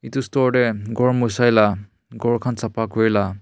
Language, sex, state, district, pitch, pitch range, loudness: Nagamese, male, Nagaland, Kohima, 115 Hz, 110-125 Hz, -19 LUFS